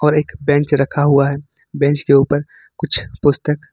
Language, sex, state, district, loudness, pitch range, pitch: Hindi, male, Jharkhand, Ranchi, -16 LUFS, 140-150 Hz, 145 Hz